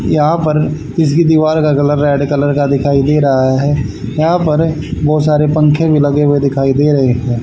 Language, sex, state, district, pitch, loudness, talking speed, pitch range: Hindi, male, Haryana, Charkhi Dadri, 145 Hz, -12 LUFS, 210 wpm, 140-155 Hz